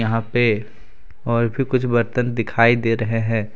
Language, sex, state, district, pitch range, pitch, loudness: Hindi, male, Jharkhand, Deoghar, 110-120 Hz, 115 Hz, -19 LUFS